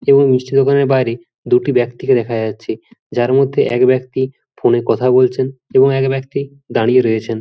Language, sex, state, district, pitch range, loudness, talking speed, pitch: Bengali, male, West Bengal, Jhargram, 120-135 Hz, -15 LUFS, 170 wpm, 130 Hz